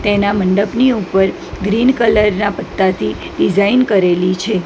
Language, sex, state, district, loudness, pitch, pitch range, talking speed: Gujarati, female, Gujarat, Gandhinagar, -14 LUFS, 200 Hz, 190-215 Hz, 130 wpm